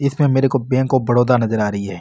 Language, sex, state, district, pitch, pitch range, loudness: Marwari, male, Rajasthan, Nagaur, 125 Hz, 110-135 Hz, -17 LUFS